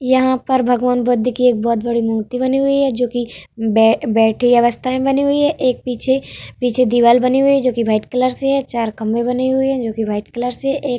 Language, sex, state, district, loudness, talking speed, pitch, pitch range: Hindi, female, Bihar, Vaishali, -16 LUFS, 255 wpm, 250 Hz, 235-260 Hz